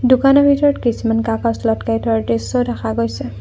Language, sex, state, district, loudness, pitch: Assamese, female, Assam, Kamrup Metropolitan, -16 LUFS, 225 Hz